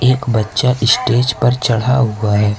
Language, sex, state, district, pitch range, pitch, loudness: Hindi, male, Jharkhand, Ranchi, 110-125 Hz, 120 Hz, -14 LUFS